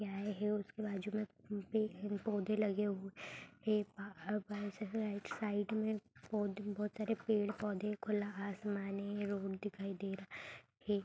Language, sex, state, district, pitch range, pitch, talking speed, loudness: Hindi, female, Bihar, Saharsa, 200-210 Hz, 205 Hz, 125 wpm, -41 LUFS